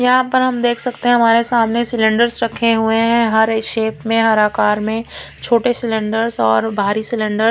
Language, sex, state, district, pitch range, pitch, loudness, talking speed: Hindi, female, Punjab, Fazilka, 220-240 Hz, 230 Hz, -15 LUFS, 190 wpm